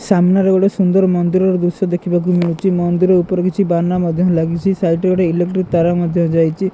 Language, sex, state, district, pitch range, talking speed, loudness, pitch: Odia, male, Odisha, Khordha, 175-185 Hz, 180 wpm, -15 LUFS, 180 Hz